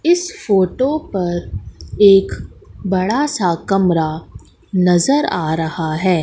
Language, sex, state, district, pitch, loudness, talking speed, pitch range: Hindi, female, Madhya Pradesh, Katni, 185 Hz, -16 LUFS, 105 wpm, 160-215 Hz